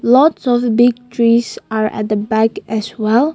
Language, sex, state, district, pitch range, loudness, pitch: English, female, Nagaland, Kohima, 220-245 Hz, -15 LUFS, 230 Hz